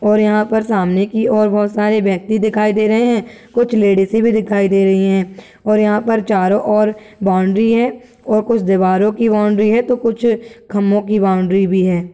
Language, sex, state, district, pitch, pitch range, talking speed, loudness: Hindi, male, Uttar Pradesh, Gorakhpur, 210 Hz, 195-225 Hz, 200 wpm, -15 LUFS